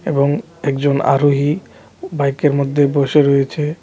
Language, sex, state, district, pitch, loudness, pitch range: Bengali, male, Tripura, West Tripura, 145 Hz, -16 LUFS, 140-150 Hz